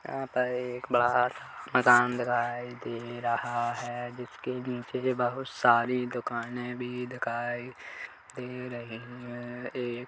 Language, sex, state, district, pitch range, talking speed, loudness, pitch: Hindi, male, Chhattisgarh, Kabirdham, 120-125 Hz, 125 wpm, -30 LUFS, 125 Hz